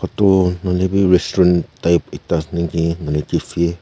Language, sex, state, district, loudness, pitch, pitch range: Nagamese, male, Nagaland, Kohima, -17 LUFS, 85 Hz, 85-90 Hz